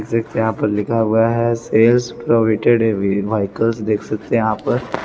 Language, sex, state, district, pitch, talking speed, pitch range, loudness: Hindi, male, Chandigarh, Chandigarh, 110 Hz, 190 wpm, 105-115 Hz, -17 LUFS